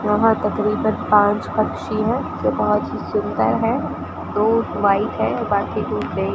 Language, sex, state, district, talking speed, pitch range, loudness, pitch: Hindi, female, Rajasthan, Bikaner, 150 wpm, 210-215 Hz, -20 LUFS, 210 Hz